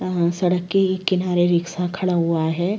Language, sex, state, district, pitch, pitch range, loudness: Hindi, female, Bihar, Madhepura, 180 Hz, 170-185 Hz, -20 LUFS